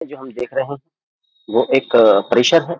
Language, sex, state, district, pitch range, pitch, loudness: Hindi, male, Uttar Pradesh, Jyotiba Phule Nagar, 125-165 Hz, 135 Hz, -15 LUFS